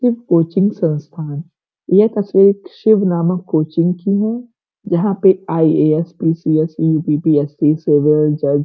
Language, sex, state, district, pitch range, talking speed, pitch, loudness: Hindi, female, Uttar Pradesh, Gorakhpur, 155-195 Hz, 125 wpm, 165 Hz, -15 LUFS